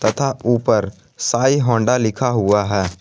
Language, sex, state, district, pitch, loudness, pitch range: Hindi, male, Jharkhand, Garhwa, 115 Hz, -17 LUFS, 105-125 Hz